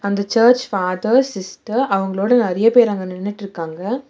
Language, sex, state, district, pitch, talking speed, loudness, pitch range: Tamil, female, Tamil Nadu, Nilgiris, 200 Hz, 130 wpm, -17 LUFS, 190-245 Hz